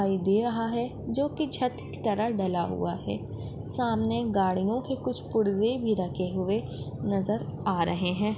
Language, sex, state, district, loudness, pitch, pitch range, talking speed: Hindi, female, Maharashtra, Dhule, -29 LUFS, 205 Hz, 180-230 Hz, 165 wpm